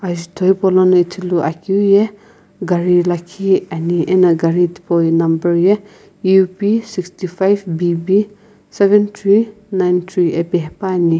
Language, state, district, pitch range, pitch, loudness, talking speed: Sumi, Nagaland, Kohima, 175-200 Hz, 185 Hz, -15 LUFS, 120 wpm